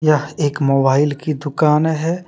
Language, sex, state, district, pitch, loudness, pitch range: Hindi, male, Jharkhand, Deoghar, 150 Hz, -17 LUFS, 145-155 Hz